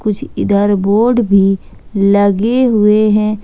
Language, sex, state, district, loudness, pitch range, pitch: Hindi, female, Jharkhand, Ranchi, -12 LUFS, 200-225 Hz, 210 Hz